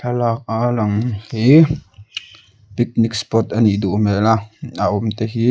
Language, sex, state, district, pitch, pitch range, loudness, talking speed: Mizo, male, Mizoram, Aizawl, 110 Hz, 105-120 Hz, -17 LUFS, 120 wpm